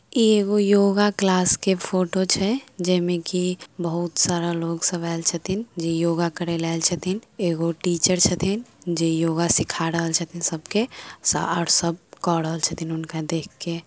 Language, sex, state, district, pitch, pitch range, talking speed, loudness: Maithili, female, Bihar, Samastipur, 175 Hz, 165-190 Hz, 175 wpm, -22 LUFS